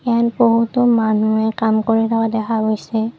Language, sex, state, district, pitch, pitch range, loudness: Assamese, female, Assam, Kamrup Metropolitan, 225 Hz, 220-230 Hz, -17 LUFS